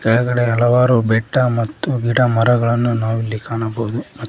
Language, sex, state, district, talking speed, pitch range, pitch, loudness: Kannada, male, Karnataka, Koppal, 140 wpm, 115-125 Hz, 120 Hz, -17 LUFS